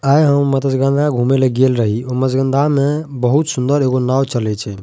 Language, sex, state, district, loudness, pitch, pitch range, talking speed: Maithili, male, Bihar, Madhepura, -15 LUFS, 135 Hz, 125-140 Hz, 200 wpm